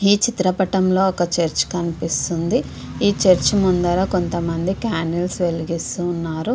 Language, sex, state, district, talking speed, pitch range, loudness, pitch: Telugu, female, Andhra Pradesh, Visakhapatnam, 110 wpm, 170-190 Hz, -19 LUFS, 180 Hz